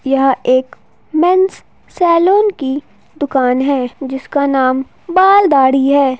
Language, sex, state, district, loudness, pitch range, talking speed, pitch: Hindi, female, Bihar, Jahanabad, -13 LUFS, 265-340 Hz, 115 wpm, 280 Hz